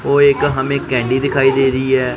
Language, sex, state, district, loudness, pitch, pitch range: Hindi, male, Punjab, Pathankot, -15 LUFS, 135 Hz, 130-140 Hz